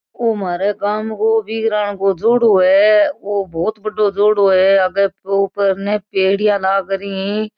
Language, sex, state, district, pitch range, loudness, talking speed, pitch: Marwari, female, Rajasthan, Nagaur, 195-215 Hz, -16 LUFS, 150 wpm, 205 Hz